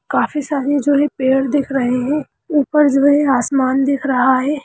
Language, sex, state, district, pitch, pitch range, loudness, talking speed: Hindi, female, Bihar, Lakhisarai, 280 Hz, 265-290 Hz, -16 LUFS, 165 wpm